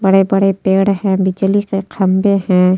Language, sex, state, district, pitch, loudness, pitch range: Hindi, female, Uttar Pradesh, Etah, 195 Hz, -14 LUFS, 190-195 Hz